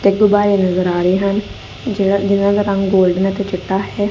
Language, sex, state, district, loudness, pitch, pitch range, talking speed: Punjabi, female, Punjab, Kapurthala, -15 LUFS, 200 Hz, 190-205 Hz, 205 wpm